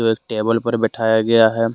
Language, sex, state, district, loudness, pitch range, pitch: Hindi, male, Jharkhand, Deoghar, -17 LUFS, 110-115 Hz, 115 Hz